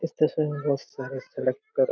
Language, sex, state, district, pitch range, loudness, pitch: Hindi, male, Chhattisgarh, Korba, 140-165 Hz, -28 LUFS, 155 Hz